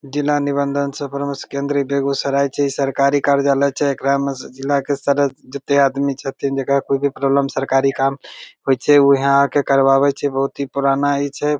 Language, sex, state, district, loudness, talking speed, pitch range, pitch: Maithili, male, Bihar, Begusarai, -18 LUFS, 190 wpm, 135-140 Hz, 140 Hz